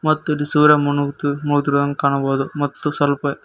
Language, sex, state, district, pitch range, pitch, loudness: Kannada, male, Karnataka, Koppal, 140-150 Hz, 145 Hz, -18 LUFS